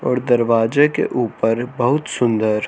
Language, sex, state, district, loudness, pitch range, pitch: Hindi, male, Haryana, Charkhi Dadri, -18 LUFS, 115-130 Hz, 120 Hz